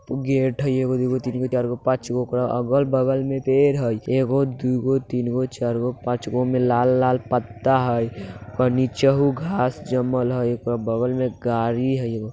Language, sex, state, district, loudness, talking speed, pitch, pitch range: Hindi, male, Bihar, Muzaffarpur, -22 LUFS, 195 wpm, 125 Hz, 120-130 Hz